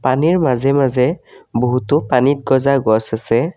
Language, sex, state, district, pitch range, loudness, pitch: Assamese, male, Assam, Kamrup Metropolitan, 125-140 Hz, -16 LUFS, 130 Hz